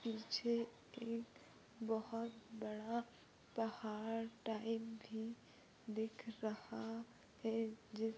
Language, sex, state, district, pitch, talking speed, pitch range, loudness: Hindi, female, Chhattisgarh, Rajnandgaon, 225 Hz, 80 wpm, 220-230 Hz, -45 LUFS